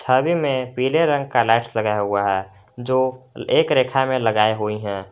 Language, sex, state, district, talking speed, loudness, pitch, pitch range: Hindi, male, Jharkhand, Garhwa, 185 wpm, -20 LUFS, 120 Hz, 105-130 Hz